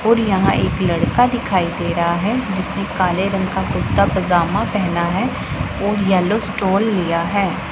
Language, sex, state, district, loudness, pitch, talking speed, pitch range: Hindi, female, Punjab, Pathankot, -18 LUFS, 190 Hz, 165 wpm, 180-210 Hz